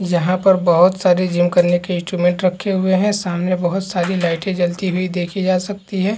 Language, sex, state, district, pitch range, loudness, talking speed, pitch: Hindi, male, Chhattisgarh, Balrampur, 175-190 Hz, -17 LUFS, 205 wpm, 185 Hz